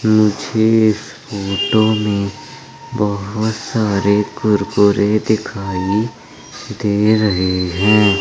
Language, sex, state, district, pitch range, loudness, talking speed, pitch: Hindi, male, Madhya Pradesh, Umaria, 100-110 Hz, -16 LUFS, 80 wpm, 105 Hz